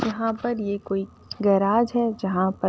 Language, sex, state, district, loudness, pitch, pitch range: Hindi, female, Uttar Pradesh, Ghazipur, -24 LUFS, 205 Hz, 195-230 Hz